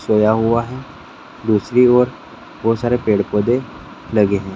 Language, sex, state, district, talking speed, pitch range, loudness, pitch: Hindi, male, Bihar, Saharsa, 130 wpm, 105-125 Hz, -17 LUFS, 115 Hz